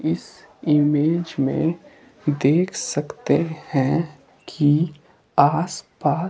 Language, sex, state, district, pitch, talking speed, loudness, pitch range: Hindi, male, Himachal Pradesh, Shimla, 155 Hz, 75 wpm, -21 LUFS, 145-170 Hz